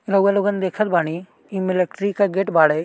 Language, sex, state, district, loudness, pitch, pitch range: Bhojpuri, male, Uttar Pradesh, Ghazipur, -20 LUFS, 190 Hz, 175-200 Hz